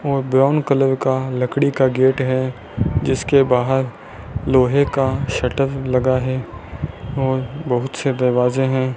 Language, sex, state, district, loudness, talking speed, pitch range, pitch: Hindi, male, Rajasthan, Bikaner, -18 LUFS, 135 wpm, 125-135 Hz, 130 Hz